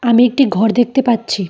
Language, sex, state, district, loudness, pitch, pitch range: Bengali, female, Tripura, Dhalai, -14 LUFS, 240 Hz, 220-245 Hz